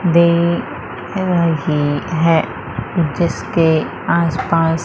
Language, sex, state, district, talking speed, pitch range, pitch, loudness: Hindi, female, Madhya Pradesh, Umaria, 75 wpm, 160-170 Hz, 165 Hz, -17 LUFS